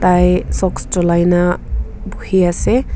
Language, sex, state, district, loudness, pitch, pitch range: Nagamese, female, Nagaland, Kohima, -15 LUFS, 180 Hz, 175-185 Hz